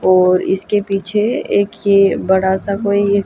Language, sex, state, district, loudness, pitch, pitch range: Hindi, female, Haryana, Jhajjar, -15 LUFS, 200 Hz, 190-200 Hz